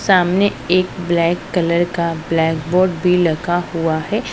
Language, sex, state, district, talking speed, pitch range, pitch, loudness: Hindi, female, Punjab, Pathankot, 150 wpm, 165-185 Hz, 175 Hz, -17 LUFS